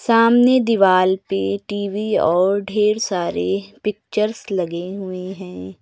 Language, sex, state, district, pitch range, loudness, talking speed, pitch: Hindi, female, Uttar Pradesh, Lucknow, 175-210 Hz, -19 LUFS, 115 wpm, 195 Hz